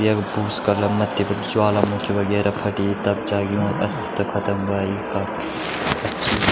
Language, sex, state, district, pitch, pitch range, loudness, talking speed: Garhwali, male, Uttarakhand, Tehri Garhwal, 100 Hz, 100-105 Hz, -21 LUFS, 130 wpm